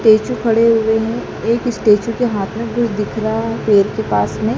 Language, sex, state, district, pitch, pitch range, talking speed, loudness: Hindi, male, Madhya Pradesh, Dhar, 225 Hz, 215-230 Hz, 235 wpm, -16 LUFS